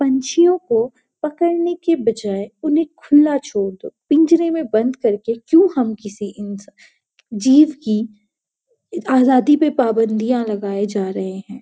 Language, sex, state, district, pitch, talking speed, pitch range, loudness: Hindi, female, Uttarakhand, Uttarkashi, 255 Hz, 135 wpm, 210-305 Hz, -17 LUFS